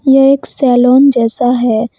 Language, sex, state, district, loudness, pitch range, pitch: Hindi, female, Jharkhand, Deoghar, -10 LUFS, 235-270 Hz, 250 Hz